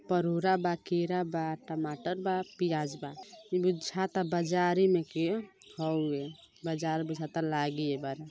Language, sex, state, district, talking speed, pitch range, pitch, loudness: Bhojpuri, female, Uttar Pradesh, Ghazipur, 125 wpm, 155-180 Hz, 170 Hz, -32 LUFS